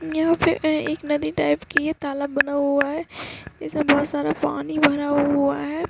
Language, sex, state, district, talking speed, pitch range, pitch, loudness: Hindi, female, Uttarakhand, Uttarkashi, 185 wpm, 285-310 Hz, 290 Hz, -22 LUFS